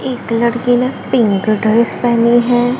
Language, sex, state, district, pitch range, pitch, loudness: Hindi, female, Gujarat, Gandhinagar, 230-245 Hz, 240 Hz, -13 LUFS